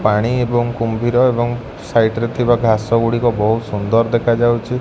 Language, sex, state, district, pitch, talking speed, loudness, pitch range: Odia, male, Odisha, Khordha, 115 Hz, 135 wpm, -16 LUFS, 110-120 Hz